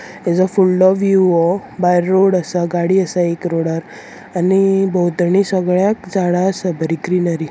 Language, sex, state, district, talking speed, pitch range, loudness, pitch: Konkani, female, Goa, North and South Goa, 160 wpm, 175-190 Hz, -15 LUFS, 180 Hz